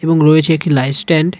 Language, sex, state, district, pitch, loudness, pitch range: Bengali, male, West Bengal, Cooch Behar, 160 Hz, -12 LUFS, 150-165 Hz